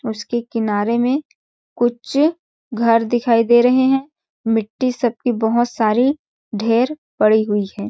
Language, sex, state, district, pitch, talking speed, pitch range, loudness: Hindi, female, Chhattisgarh, Balrampur, 235 Hz, 135 wpm, 225-255 Hz, -18 LUFS